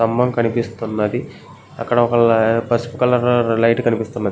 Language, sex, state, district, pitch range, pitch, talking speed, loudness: Telugu, male, Andhra Pradesh, Guntur, 115-120 Hz, 115 Hz, 110 wpm, -17 LUFS